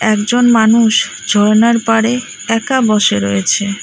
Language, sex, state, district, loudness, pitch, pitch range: Bengali, female, West Bengal, Cooch Behar, -12 LUFS, 225 Hz, 205-235 Hz